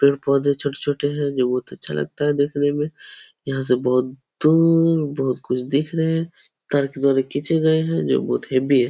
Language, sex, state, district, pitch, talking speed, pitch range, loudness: Hindi, male, Uttar Pradesh, Etah, 140 Hz, 195 wpm, 130-150 Hz, -21 LUFS